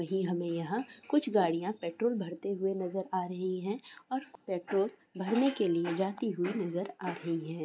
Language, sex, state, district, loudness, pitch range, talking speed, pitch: Hindi, female, Bihar, Darbhanga, -33 LUFS, 175-215 Hz, 180 wpm, 190 Hz